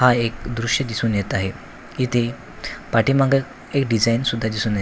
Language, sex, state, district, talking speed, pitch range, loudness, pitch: Marathi, male, Maharashtra, Washim, 160 wpm, 110-125 Hz, -21 LUFS, 115 Hz